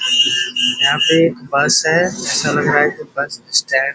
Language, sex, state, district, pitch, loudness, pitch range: Hindi, male, Bihar, Muzaffarpur, 145 Hz, -15 LUFS, 135-160 Hz